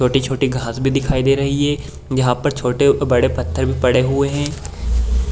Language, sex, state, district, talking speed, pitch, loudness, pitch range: Hindi, male, Bihar, Kishanganj, 170 wpm, 130 Hz, -18 LUFS, 115-140 Hz